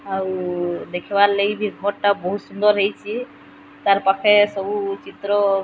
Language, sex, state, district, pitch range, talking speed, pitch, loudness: Odia, female, Odisha, Sambalpur, 195-205 Hz, 140 wpm, 200 Hz, -20 LUFS